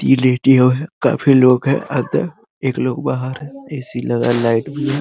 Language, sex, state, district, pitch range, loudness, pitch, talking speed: Hindi, male, Bihar, Muzaffarpur, 125-140 Hz, -16 LUFS, 130 Hz, 170 wpm